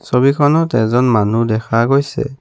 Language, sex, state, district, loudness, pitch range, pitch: Assamese, male, Assam, Kamrup Metropolitan, -14 LUFS, 115-140 Hz, 125 Hz